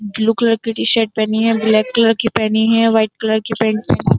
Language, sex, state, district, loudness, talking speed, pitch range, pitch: Hindi, female, Uttar Pradesh, Jyotiba Phule Nagar, -15 LUFS, 230 wpm, 220-225 Hz, 225 Hz